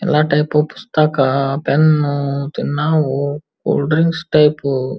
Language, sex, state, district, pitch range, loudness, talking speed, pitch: Kannada, female, Karnataka, Belgaum, 140-155 Hz, -16 LUFS, 110 wpm, 150 Hz